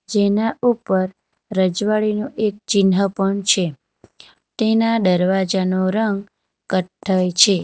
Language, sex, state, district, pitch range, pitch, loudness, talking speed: Gujarati, female, Gujarat, Valsad, 185-215 Hz, 195 Hz, -19 LUFS, 110 wpm